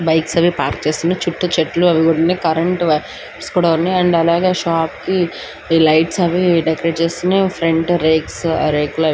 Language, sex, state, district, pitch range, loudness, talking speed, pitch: Telugu, male, Andhra Pradesh, Anantapur, 160-175 Hz, -16 LUFS, 90 wpm, 165 Hz